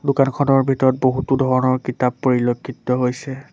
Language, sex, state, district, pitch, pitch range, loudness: Assamese, male, Assam, Sonitpur, 130 Hz, 125-135 Hz, -18 LUFS